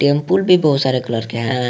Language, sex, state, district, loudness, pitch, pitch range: Hindi, male, Jharkhand, Garhwa, -16 LUFS, 130 Hz, 120-150 Hz